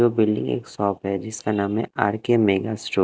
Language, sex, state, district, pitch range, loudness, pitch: Hindi, male, Haryana, Rohtak, 100-110 Hz, -23 LUFS, 105 Hz